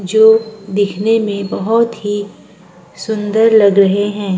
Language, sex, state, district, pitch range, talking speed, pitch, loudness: Hindi, female, Uttar Pradesh, Jyotiba Phule Nagar, 200-220 Hz, 125 wpm, 205 Hz, -13 LUFS